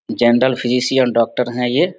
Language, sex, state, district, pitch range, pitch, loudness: Hindi, male, Bihar, Samastipur, 120-130 Hz, 125 Hz, -16 LUFS